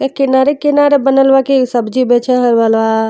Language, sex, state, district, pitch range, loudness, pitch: Bhojpuri, female, Uttar Pradesh, Deoria, 240-270 Hz, -11 LUFS, 265 Hz